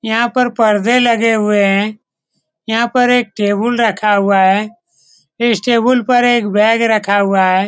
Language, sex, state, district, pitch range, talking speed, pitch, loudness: Hindi, male, Bihar, Saran, 205-240 Hz, 165 wpm, 220 Hz, -13 LUFS